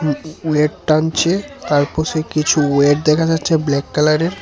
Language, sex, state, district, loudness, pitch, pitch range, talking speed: Bengali, male, Tripura, West Tripura, -16 LUFS, 155 Hz, 150-160 Hz, 150 wpm